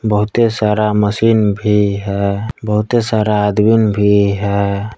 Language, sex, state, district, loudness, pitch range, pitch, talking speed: Hindi, male, Jharkhand, Palamu, -14 LUFS, 100-110 Hz, 105 Hz, 120 wpm